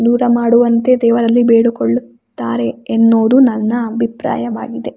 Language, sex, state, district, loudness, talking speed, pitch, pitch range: Kannada, female, Karnataka, Raichur, -13 LUFS, 85 wpm, 230 Hz, 215-240 Hz